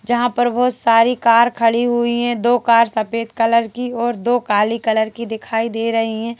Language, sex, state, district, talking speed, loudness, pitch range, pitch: Hindi, female, Madhya Pradesh, Bhopal, 205 wpm, -17 LUFS, 225-240 Hz, 230 Hz